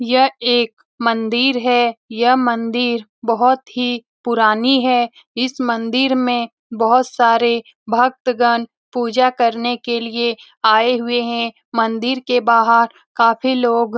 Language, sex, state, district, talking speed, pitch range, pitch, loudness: Hindi, female, Bihar, Lakhisarai, 125 wpm, 230-250 Hz, 240 Hz, -17 LUFS